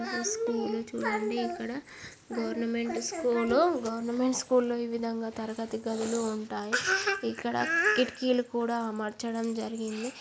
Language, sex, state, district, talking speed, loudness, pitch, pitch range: Telugu, female, Andhra Pradesh, Guntur, 110 wpm, -30 LUFS, 230 Hz, 220-245 Hz